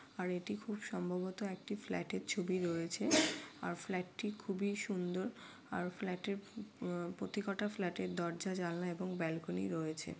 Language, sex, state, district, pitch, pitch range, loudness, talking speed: Bengali, female, West Bengal, Paschim Medinipur, 185 Hz, 175-205 Hz, -40 LUFS, 160 wpm